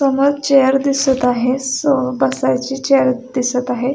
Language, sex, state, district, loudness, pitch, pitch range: Marathi, female, Maharashtra, Sindhudurg, -16 LUFS, 265 Hz, 250-275 Hz